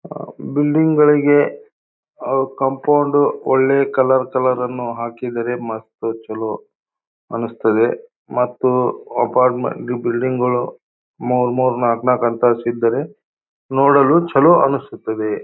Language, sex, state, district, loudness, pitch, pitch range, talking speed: Kannada, male, Karnataka, Bijapur, -17 LUFS, 130 Hz, 120-140 Hz, 100 wpm